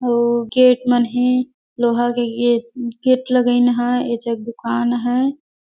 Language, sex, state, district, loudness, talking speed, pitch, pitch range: Surgujia, female, Chhattisgarh, Sarguja, -18 LUFS, 145 wpm, 245 Hz, 235-250 Hz